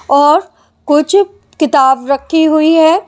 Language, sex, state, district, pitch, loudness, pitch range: Hindi, male, Delhi, New Delhi, 310 Hz, -11 LUFS, 285-330 Hz